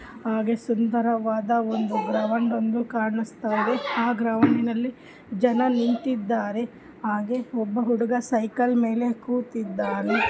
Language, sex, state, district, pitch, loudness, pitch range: Kannada, female, Karnataka, Dharwad, 235 Hz, -24 LUFS, 225-240 Hz